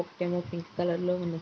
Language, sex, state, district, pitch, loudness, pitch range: Telugu, female, Andhra Pradesh, Guntur, 175 Hz, -31 LUFS, 170-180 Hz